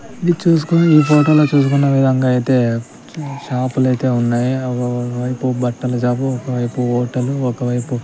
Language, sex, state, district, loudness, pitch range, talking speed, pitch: Telugu, male, Andhra Pradesh, Sri Satya Sai, -16 LUFS, 125-140 Hz, 165 wpm, 130 Hz